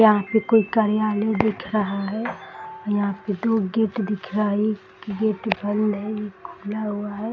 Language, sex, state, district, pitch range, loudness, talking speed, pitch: Hindi, male, Bihar, East Champaran, 205-220 Hz, -23 LUFS, 205 wpm, 210 Hz